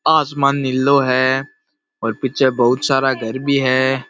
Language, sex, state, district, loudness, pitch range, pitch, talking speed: Marwari, male, Rajasthan, Nagaur, -17 LUFS, 130-140 Hz, 135 Hz, 145 wpm